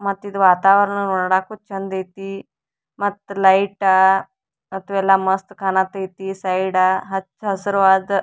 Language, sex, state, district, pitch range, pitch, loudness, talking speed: Kannada, female, Karnataka, Dharwad, 190-200 Hz, 195 Hz, -18 LUFS, 95 wpm